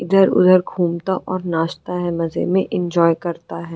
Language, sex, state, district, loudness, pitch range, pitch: Hindi, female, Uttar Pradesh, Gorakhpur, -18 LUFS, 170-185 Hz, 175 Hz